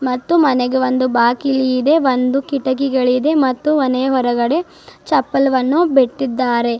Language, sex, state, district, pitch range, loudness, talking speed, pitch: Kannada, female, Karnataka, Bidar, 250-275 Hz, -15 LUFS, 105 wpm, 260 Hz